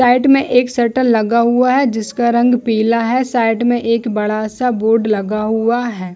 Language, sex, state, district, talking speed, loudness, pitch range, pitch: Hindi, female, Chhattisgarh, Bilaspur, 185 wpm, -15 LUFS, 220-245 Hz, 235 Hz